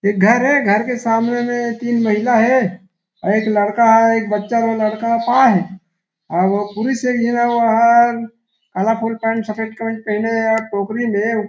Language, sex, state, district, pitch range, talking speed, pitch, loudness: Chhattisgarhi, male, Chhattisgarh, Rajnandgaon, 210-235 Hz, 170 wpm, 225 Hz, -16 LUFS